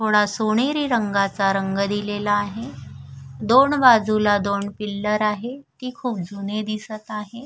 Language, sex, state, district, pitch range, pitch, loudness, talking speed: Marathi, female, Maharashtra, Sindhudurg, 200-230 Hz, 210 Hz, -21 LUFS, 130 wpm